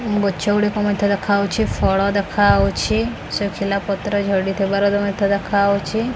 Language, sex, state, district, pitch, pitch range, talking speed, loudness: Odia, female, Odisha, Khordha, 200 Hz, 195-205 Hz, 135 wpm, -19 LUFS